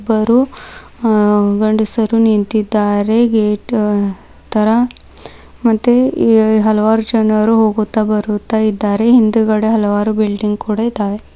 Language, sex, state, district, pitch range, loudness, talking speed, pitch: Kannada, female, Karnataka, Bidar, 210-225 Hz, -14 LUFS, 95 wpm, 215 Hz